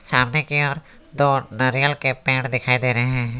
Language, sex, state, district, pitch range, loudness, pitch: Hindi, male, West Bengal, Alipurduar, 125-140 Hz, -20 LUFS, 130 Hz